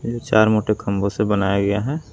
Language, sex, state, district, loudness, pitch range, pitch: Hindi, male, Jharkhand, Palamu, -19 LUFS, 100-110 Hz, 105 Hz